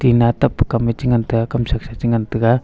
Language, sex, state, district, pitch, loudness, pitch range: Wancho, male, Arunachal Pradesh, Longding, 120 Hz, -18 LUFS, 115-125 Hz